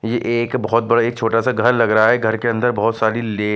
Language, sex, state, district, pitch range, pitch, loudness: Hindi, male, Chandigarh, Chandigarh, 110-120 Hz, 115 Hz, -17 LUFS